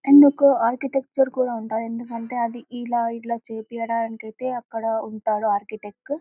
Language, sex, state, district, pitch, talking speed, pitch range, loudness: Telugu, female, Telangana, Karimnagar, 235 Hz, 105 wpm, 225-255 Hz, -23 LUFS